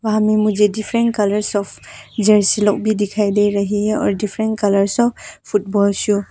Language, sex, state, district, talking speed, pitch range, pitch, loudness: Hindi, female, Arunachal Pradesh, Papum Pare, 190 wpm, 205-215 Hz, 210 Hz, -17 LUFS